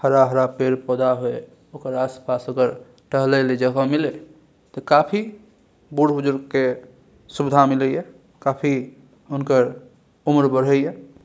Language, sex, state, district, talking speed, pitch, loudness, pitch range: Maithili, male, Bihar, Saharsa, 130 wpm, 135 Hz, -20 LUFS, 130-145 Hz